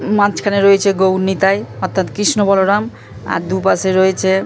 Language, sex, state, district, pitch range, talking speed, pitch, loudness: Bengali, female, West Bengal, Purulia, 190-200 Hz, 135 wpm, 195 Hz, -14 LUFS